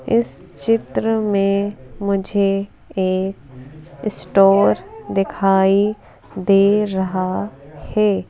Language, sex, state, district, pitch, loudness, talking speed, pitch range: Hindi, female, Madhya Pradesh, Bhopal, 195 Hz, -18 LUFS, 70 wpm, 190-210 Hz